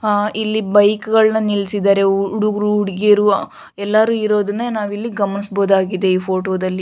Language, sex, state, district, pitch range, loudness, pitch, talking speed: Kannada, female, Karnataka, Shimoga, 195-215 Hz, -16 LUFS, 205 Hz, 130 wpm